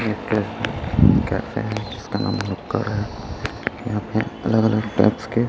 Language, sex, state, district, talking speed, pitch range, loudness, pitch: Hindi, male, Chhattisgarh, Raipur, 155 wpm, 105-115 Hz, -22 LUFS, 110 Hz